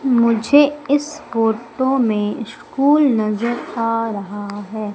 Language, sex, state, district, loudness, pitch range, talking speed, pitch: Hindi, female, Madhya Pradesh, Umaria, -18 LUFS, 215-270 Hz, 110 wpm, 230 Hz